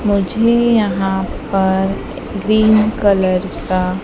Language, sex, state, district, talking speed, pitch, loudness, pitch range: Hindi, female, Madhya Pradesh, Dhar, 90 wpm, 200 Hz, -15 LUFS, 190-215 Hz